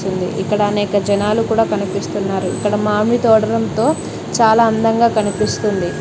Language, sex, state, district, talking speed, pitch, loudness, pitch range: Telugu, female, Telangana, Mahabubabad, 130 wpm, 210 Hz, -16 LUFS, 200-225 Hz